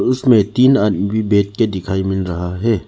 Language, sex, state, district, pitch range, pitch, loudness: Hindi, male, Arunachal Pradesh, Lower Dibang Valley, 95-115 Hz, 105 Hz, -16 LUFS